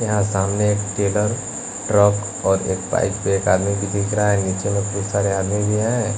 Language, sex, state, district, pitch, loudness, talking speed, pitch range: Hindi, male, Bihar, West Champaran, 100 Hz, -20 LUFS, 205 wpm, 100-105 Hz